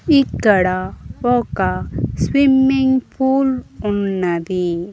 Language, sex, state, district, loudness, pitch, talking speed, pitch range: Telugu, female, Andhra Pradesh, Annamaya, -17 LUFS, 240 Hz, 60 wpm, 185-265 Hz